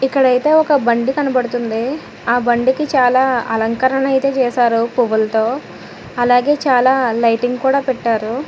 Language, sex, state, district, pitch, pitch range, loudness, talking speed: Telugu, female, Telangana, Hyderabad, 250 Hz, 235-265 Hz, -15 LUFS, 115 wpm